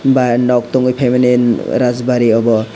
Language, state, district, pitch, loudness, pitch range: Kokborok, Tripura, West Tripura, 125 Hz, -13 LUFS, 120-125 Hz